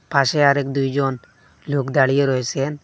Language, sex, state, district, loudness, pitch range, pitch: Bengali, male, Assam, Hailakandi, -19 LUFS, 135-140 Hz, 140 Hz